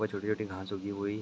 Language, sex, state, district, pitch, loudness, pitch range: Hindi, male, Uttar Pradesh, Etah, 100 Hz, -35 LUFS, 100-105 Hz